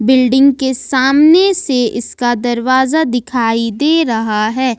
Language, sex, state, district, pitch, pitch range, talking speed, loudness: Hindi, female, Jharkhand, Ranchi, 255 Hz, 235-275 Hz, 125 wpm, -13 LUFS